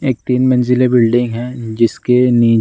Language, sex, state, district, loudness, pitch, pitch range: Hindi, male, Bihar, Gaya, -14 LUFS, 125 Hz, 115-125 Hz